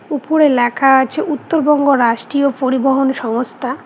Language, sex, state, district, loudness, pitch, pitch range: Bengali, female, West Bengal, Cooch Behar, -14 LUFS, 270 Hz, 255-290 Hz